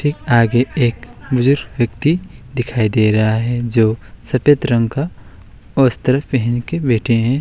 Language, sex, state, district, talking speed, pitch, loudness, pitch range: Hindi, male, West Bengal, Alipurduar, 140 wpm, 120 Hz, -16 LUFS, 115-135 Hz